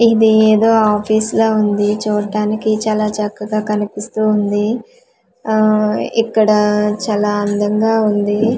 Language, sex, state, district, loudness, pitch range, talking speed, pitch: Telugu, female, Andhra Pradesh, Manyam, -15 LUFS, 210-220 Hz, 105 wpm, 215 Hz